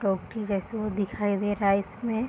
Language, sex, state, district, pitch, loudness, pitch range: Hindi, female, Bihar, Purnia, 205 Hz, -28 LUFS, 200-215 Hz